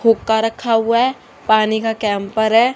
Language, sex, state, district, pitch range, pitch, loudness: Hindi, female, Haryana, Charkhi Dadri, 220-230 Hz, 225 Hz, -16 LUFS